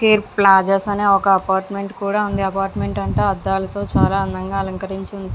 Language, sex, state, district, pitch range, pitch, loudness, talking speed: Telugu, female, Andhra Pradesh, Visakhapatnam, 190-200 Hz, 195 Hz, -18 LUFS, 170 wpm